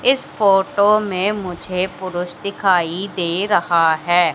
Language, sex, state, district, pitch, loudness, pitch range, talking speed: Hindi, female, Madhya Pradesh, Katni, 185 Hz, -18 LUFS, 175-200 Hz, 125 wpm